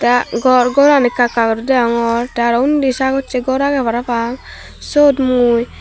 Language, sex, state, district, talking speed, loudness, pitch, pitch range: Chakma, female, Tripura, Dhalai, 165 wpm, -14 LUFS, 245 Hz, 235-265 Hz